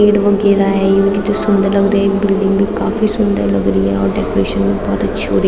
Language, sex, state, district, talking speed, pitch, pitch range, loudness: Hindi, female, Uttarakhand, Tehri Garhwal, 250 wpm, 200 Hz, 195-205 Hz, -14 LUFS